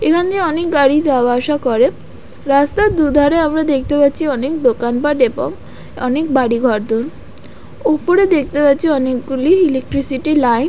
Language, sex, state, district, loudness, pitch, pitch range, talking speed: Bengali, female, West Bengal, Dakshin Dinajpur, -15 LUFS, 285 Hz, 260-310 Hz, 135 wpm